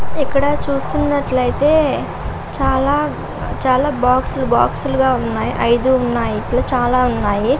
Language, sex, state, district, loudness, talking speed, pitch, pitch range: Telugu, female, Andhra Pradesh, Srikakulam, -17 LUFS, 80 wpm, 260 Hz, 250-285 Hz